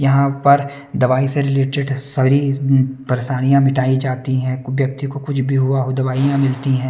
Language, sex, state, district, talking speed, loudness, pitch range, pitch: Hindi, male, Bihar, West Champaran, 175 wpm, -17 LUFS, 130-140 Hz, 135 Hz